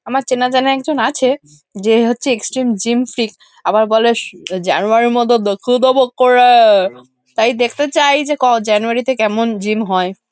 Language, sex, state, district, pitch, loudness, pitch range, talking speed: Bengali, female, West Bengal, Kolkata, 235 Hz, -14 LUFS, 215-255 Hz, 170 wpm